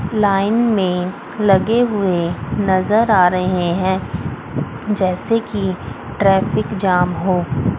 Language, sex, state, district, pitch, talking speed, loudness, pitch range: Hindi, female, Chandigarh, Chandigarh, 190 Hz, 100 wpm, -17 LUFS, 180-205 Hz